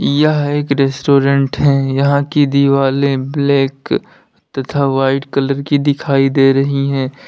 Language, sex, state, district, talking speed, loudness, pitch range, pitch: Hindi, male, Uttar Pradesh, Lalitpur, 130 wpm, -14 LUFS, 135-140 Hz, 140 Hz